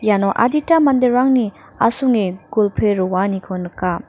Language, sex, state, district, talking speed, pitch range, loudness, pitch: Garo, female, Meghalaya, North Garo Hills, 105 wpm, 190-250 Hz, -17 LUFS, 210 Hz